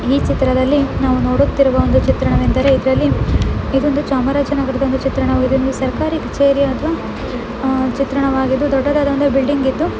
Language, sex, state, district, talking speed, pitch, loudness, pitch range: Kannada, female, Karnataka, Dakshina Kannada, 110 wpm, 270 Hz, -16 LUFS, 265-280 Hz